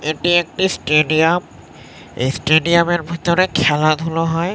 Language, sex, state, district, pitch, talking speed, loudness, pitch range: Bengali, male, West Bengal, North 24 Parganas, 165 Hz, 120 wpm, -16 LUFS, 155-175 Hz